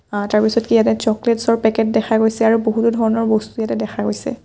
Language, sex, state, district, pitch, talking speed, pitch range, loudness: Assamese, female, Assam, Kamrup Metropolitan, 225 Hz, 230 wpm, 220-230 Hz, -17 LUFS